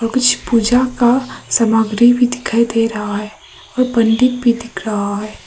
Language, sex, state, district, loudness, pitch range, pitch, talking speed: Hindi, female, Arunachal Pradesh, Papum Pare, -15 LUFS, 220-245 Hz, 235 Hz, 165 wpm